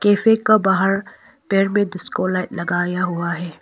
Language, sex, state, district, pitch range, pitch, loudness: Hindi, female, Arunachal Pradesh, Longding, 175-205 Hz, 190 Hz, -19 LUFS